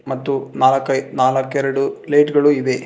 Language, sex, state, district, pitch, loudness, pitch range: Kannada, male, Karnataka, Bangalore, 135 Hz, -17 LUFS, 130-145 Hz